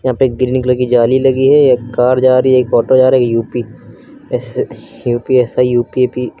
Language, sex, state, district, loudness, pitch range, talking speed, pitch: Hindi, male, Uttar Pradesh, Lucknow, -12 LUFS, 120-130 Hz, 225 wpm, 125 Hz